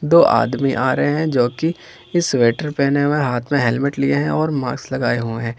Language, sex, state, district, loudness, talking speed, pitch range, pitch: Hindi, male, Jharkhand, Ranchi, -18 LUFS, 225 wpm, 120-150 Hz, 135 Hz